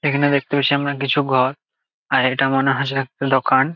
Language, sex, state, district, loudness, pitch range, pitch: Bengali, male, West Bengal, Jalpaiguri, -18 LUFS, 135-140 Hz, 135 Hz